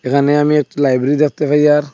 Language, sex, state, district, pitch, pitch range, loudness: Bengali, male, Assam, Hailakandi, 145 Hz, 140-150 Hz, -14 LUFS